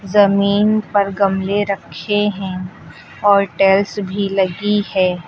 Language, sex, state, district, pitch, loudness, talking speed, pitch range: Hindi, female, Uttar Pradesh, Lucknow, 200 Hz, -16 LUFS, 115 wpm, 190-205 Hz